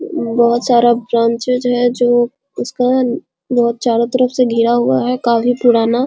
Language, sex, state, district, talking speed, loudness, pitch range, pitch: Hindi, female, Bihar, Muzaffarpur, 160 wpm, -14 LUFS, 235-250 Hz, 245 Hz